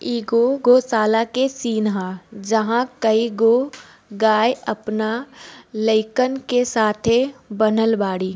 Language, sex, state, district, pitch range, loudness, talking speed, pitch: Bhojpuri, female, Bihar, Gopalganj, 215-245 Hz, -19 LUFS, 100 wpm, 225 Hz